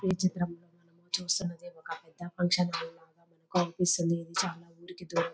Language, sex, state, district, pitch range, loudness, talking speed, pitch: Telugu, female, Telangana, Nalgonda, 170-180 Hz, -31 LUFS, 135 wpm, 175 Hz